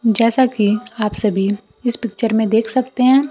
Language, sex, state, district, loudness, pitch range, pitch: Hindi, female, Bihar, Kaimur, -17 LUFS, 215-250 Hz, 230 Hz